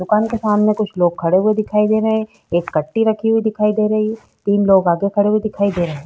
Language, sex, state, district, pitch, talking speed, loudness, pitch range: Hindi, female, Uttar Pradesh, Jalaun, 210 Hz, 285 wpm, -17 LUFS, 185-215 Hz